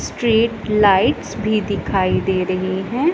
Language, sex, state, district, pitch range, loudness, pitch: Hindi, female, Punjab, Pathankot, 190-225 Hz, -18 LUFS, 200 Hz